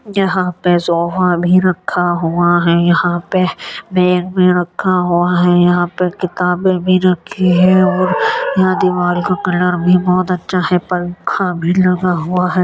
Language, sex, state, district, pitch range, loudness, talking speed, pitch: Hindi, male, Uttar Pradesh, Jyotiba Phule Nagar, 175-185 Hz, -14 LUFS, 160 wpm, 180 Hz